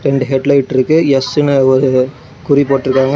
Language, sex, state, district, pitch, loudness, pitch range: Tamil, male, Tamil Nadu, Namakkal, 135 Hz, -12 LUFS, 130-140 Hz